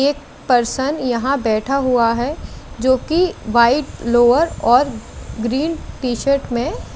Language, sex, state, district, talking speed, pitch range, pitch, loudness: Hindi, female, Chandigarh, Chandigarh, 120 wpm, 235-275 Hz, 250 Hz, -17 LUFS